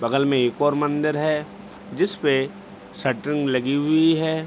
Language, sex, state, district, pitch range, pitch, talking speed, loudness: Hindi, male, Bihar, Begusarai, 135-150 Hz, 145 Hz, 145 wpm, -22 LUFS